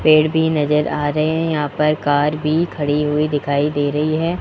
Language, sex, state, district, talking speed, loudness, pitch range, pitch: Hindi, male, Rajasthan, Jaipur, 220 wpm, -18 LUFS, 145-155 Hz, 150 Hz